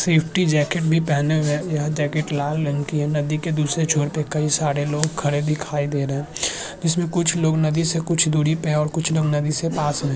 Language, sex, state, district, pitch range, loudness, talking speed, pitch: Hindi, male, Uttarakhand, Tehri Garhwal, 145-160 Hz, -21 LUFS, 240 wpm, 155 Hz